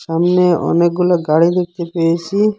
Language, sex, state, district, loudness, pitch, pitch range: Bengali, female, Assam, Hailakandi, -15 LUFS, 175 Hz, 170-180 Hz